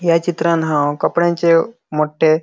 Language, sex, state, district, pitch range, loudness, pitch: Konkani, male, Goa, North and South Goa, 155-170 Hz, -16 LUFS, 165 Hz